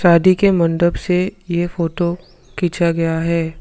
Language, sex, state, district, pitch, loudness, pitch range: Hindi, male, Assam, Sonitpur, 175 Hz, -17 LUFS, 165-180 Hz